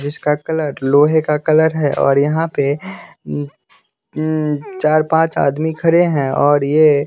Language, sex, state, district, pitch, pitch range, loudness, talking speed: Hindi, male, Bihar, West Champaran, 150 Hz, 145-160 Hz, -16 LUFS, 145 wpm